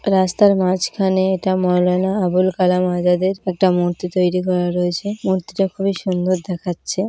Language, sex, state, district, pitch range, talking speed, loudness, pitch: Bengali, female, West Bengal, North 24 Parganas, 180-190 Hz, 145 wpm, -18 LUFS, 185 Hz